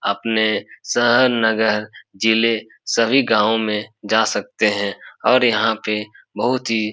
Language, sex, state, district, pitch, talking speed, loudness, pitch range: Hindi, male, Bihar, Supaul, 110 Hz, 140 wpm, -18 LUFS, 105-115 Hz